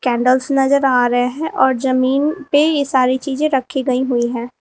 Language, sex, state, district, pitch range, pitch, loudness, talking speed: Hindi, female, Uttar Pradesh, Lalitpur, 250-280 Hz, 260 Hz, -16 LUFS, 195 wpm